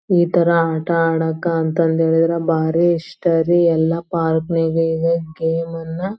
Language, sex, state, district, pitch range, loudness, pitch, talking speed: Kannada, female, Karnataka, Belgaum, 160-170 Hz, -18 LUFS, 165 Hz, 145 wpm